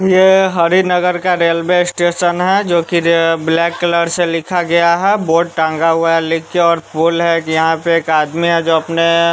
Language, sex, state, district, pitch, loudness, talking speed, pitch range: Hindi, male, Bihar, West Champaran, 170 Hz, -13 LUFS, 200 wpm, 165-175 Hz